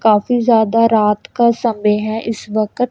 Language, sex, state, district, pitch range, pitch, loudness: Hindi, female, Punjab, Kapurthala, 215-235 Hz, 225 Hz, -15 LUFS